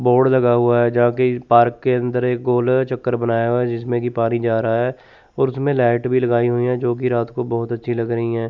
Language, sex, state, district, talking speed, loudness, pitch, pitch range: Hindi, male, Chandigarh, Chandigarh, 260 wpm, -18 LUFS, 120 Hz, 120-125 Hz